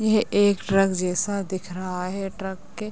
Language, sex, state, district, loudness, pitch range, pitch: Hindi, female, Bihar, Madhepura, -24 LUFS, 185-205 Hz, 195 Hz